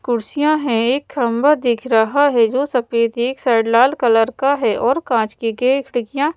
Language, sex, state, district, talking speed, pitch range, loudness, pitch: Hindi, female, Madhya Pradesh, Bhopal, 180 wpm, 230-280 Hz, -17 LUFS, 245 Hz